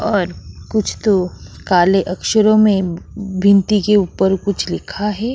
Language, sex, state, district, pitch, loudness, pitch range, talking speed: Hindi, female, Goa, North and South Goa, 200 Hz, -16 LUFS, 190-210 Hz, 135 wpm